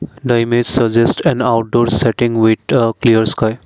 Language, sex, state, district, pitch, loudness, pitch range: English, male, Assam, Kamrup Metropolitan, 115 Hz, -13 LUFS, 110-120 Hz